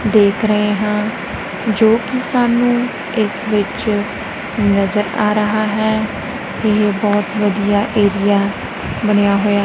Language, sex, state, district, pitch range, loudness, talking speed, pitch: Punjabi, female, Punjab, Kapurthala, 205-220 Hz, -16 LUFS, 110 wpm, 210 Hz